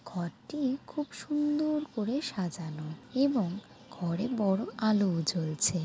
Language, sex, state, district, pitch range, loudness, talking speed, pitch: Bengali, female, West Bengal, Jalpaiguri, 175-270 Hz, -32 LUFS, 105 wpm, 210 Hz